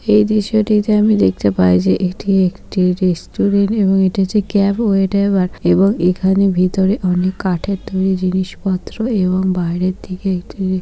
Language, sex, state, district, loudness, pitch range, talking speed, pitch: Bengali, female, West Bengal, Dakshin Dinajpur, -16 LUFS, 185-200 Hz, 140 wpm, 190 Hz